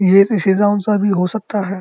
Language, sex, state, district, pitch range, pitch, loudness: Hindi, male, Uttar Pradesh, Muzaffarnagar, 190-205 Hz, 200 Hz, -15 LUFS